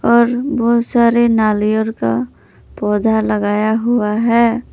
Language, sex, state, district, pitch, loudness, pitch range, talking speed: Hindi, female, Jharkhand, Palamu, 220 Hz, -15 LUFS, 210-235 Hz, 115 wpm